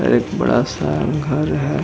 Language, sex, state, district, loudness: Hindi, male, Chhattisgarh, Bilaspur, -19 LUFS